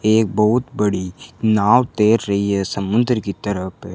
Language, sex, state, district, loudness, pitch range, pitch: Hindi, male, Rajasthan, Bikaner, -18 LUFS, 100-115 Hz, 105 Hz